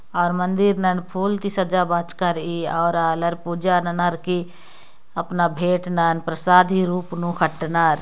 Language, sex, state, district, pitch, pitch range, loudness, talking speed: Sadri, female, Chhattisgarh, Jashpur, 175 Hz, 170-180 Hz, -21 LUFS, 155 wpm